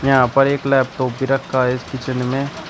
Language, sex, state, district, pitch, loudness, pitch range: Hindi, male, Uttar Pradesh, Shamli, 130 Hz, -18 LUFS, 130-135 Hz